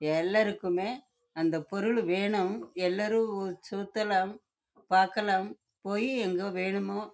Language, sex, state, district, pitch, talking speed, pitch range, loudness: Tamil, female, Karnataka, Chamarajanagar, 200 Hz, 65 wpm, 185-215 Hz, -30 LUFS